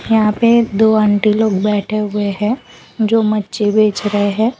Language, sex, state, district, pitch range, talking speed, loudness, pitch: Hindi, female, Gujarat, Valsad, 210-220 Hz, 170 wpm, -15 LUFS, 215 Hz